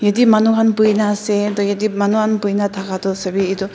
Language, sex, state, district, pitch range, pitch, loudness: Nagamese, female, Nagaland, Dimapur, 195-215 Hz, 205 Hz, -16 LUFS